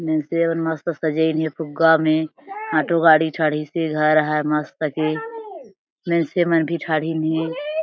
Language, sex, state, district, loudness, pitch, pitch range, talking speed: Chhattisgarhi, female, Chhattisgarh, Jashpur, -20 LUFS, 160 Hz, 155-170 Hz, 155 wpm